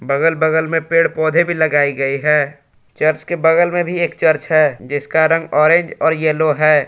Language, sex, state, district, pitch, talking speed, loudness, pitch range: Hindi, male, Jharkhand, Palamu, 155 Hz, 200 wpm, -15 LUFS, 145-165 Hz